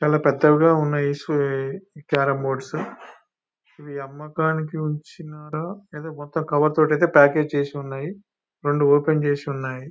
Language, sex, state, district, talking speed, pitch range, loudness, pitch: Telugu, male, Telangana, Nalgonda, 125 wpm, 145-155 Hz, -21 LUFS, 150 Hz